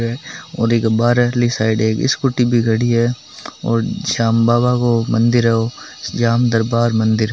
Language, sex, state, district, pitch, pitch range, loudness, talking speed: Hindi, male, Rajasthan, Nagaur, 115 Hz, 115-120 Hz, -16 LUFS, 170 wpm